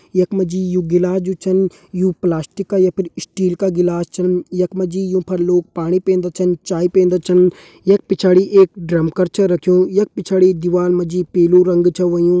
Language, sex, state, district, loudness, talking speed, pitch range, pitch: Hindi, male, Uttarakhand, Uttarkashi, -16 LUFS, 215 wpm, 180-190 Hz, 180 Hz